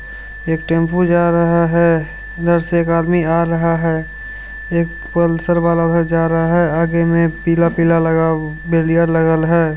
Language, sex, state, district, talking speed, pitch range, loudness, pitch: Hindi, male, Bihar, Supaul, 145 wpm, 165-175 Hz, -15 LUFS, 170 Hz